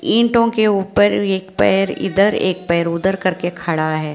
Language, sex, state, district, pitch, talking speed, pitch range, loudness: Hindi, female, Bihar, Purnia, 185 Hz, 185 wpm, 165-195 Hz, -17 LUFS